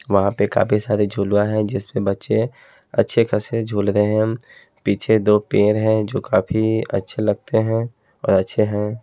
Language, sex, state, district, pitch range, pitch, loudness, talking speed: Hindi, male, Haryana, Jhajjar, 105-110 Hz, 105 Hz, -19 LUFS, 175 wpm